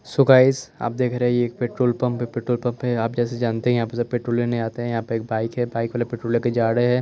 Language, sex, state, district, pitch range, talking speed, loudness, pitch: Hindi, male, Chandigarh, Chandigarh, 115-125 Hz, 310 wpm, -22 LUFS, 120 Hz